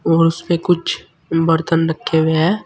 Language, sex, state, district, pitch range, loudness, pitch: Hindi, male, Uttar Pradesh, Saharanpur, 165-170 Hz, -17 LUFS, 165 Hz